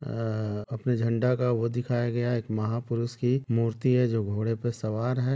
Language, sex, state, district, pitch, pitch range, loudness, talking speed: Hindi, male, Chhattisgarh, Bilaspur, 120 Hz, 115-125 Hz, -28 LUFS, 255 wpm